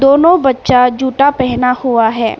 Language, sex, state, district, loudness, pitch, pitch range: Hindi, female, Arunachal Pradesh, Papum Pare, -11 LUFS, 255 Hz, 245-270 Hz